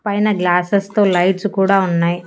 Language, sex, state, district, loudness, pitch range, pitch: Telugu, female, Andhra Pradesh, Annamaya, -16 LUFS, 180-205 Hz, 195 Hz